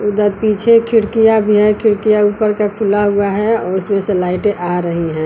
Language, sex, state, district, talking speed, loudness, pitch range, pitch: Hindi, female, Uttar Pradesh, Lucknow, 205 wpm, -14 LUFS, 200-215 Hz, 210 Hz